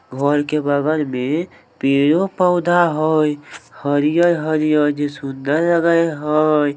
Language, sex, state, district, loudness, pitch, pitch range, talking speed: Maithili, male, Bihar, Samastipur, -17 LUFS, 150 Hz, 145-165 Hz, 95 wpm